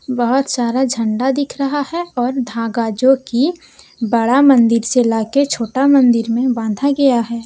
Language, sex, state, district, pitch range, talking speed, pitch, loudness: Hindi, female, Jharkhand, Deoghar, 230-275 Hz, 170 wpm, 250 Hz, -15 LUFS